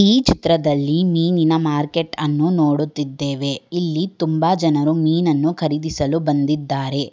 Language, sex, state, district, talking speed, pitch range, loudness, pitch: Kannada, female, Karnataka, Bangalore, 100 wpm, 145-165 Hz, -18 LUFS, 155 Hz